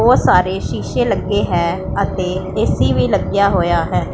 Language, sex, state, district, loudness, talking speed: Punjabi, female, Punjab, Pathankot, -16 LUFS, 160 wpm